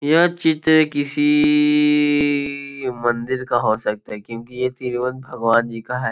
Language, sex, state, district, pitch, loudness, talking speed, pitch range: Hindi, male, Bihar, Gopalganj, 130 Hz, -19 LUFS, 145 wpm, 120-150 Hz